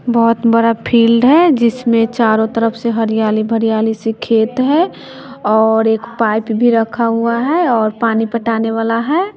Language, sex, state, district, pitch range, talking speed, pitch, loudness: Hindi, female, Bihar, West Champaran, 225-235 Hz, 160 wpm, 230 Hz, -14 LUFS